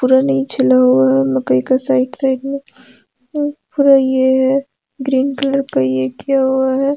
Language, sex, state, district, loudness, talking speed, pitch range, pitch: Hindi, female, Jharkhand, Deoghar, -15 LUFS, 165 wpm, 230-275 Hz, 265 Hz